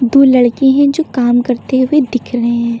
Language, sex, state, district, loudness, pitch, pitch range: Hindi, female, Uttar Pradesh, Lucknow, -12 LUFS, 250 Hz, 240-275 Hz